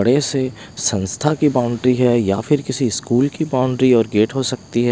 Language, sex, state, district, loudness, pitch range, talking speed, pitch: Hindi, male, Punjab, Pathankot, -18 LUFS, 120-135 Hz, 205 wpm, 125 Hz